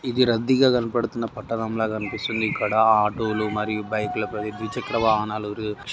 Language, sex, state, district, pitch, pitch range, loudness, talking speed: Telugu, male, Andhra Pradesh, Guntur, 110 Hz, 105-115 Hz, -23 LUFS, 120 wpm